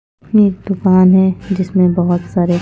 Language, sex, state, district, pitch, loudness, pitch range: Hindi, female, Punjab, Pathankot, 185 Hz, -13 LUFS, 180-195 Hz